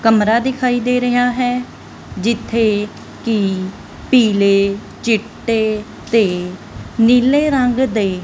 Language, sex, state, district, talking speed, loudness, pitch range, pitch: Punjabi, female, Punjab, Kapurthala, 100 wpm, -16 LUFS, 205-245 Hz, 225 Hz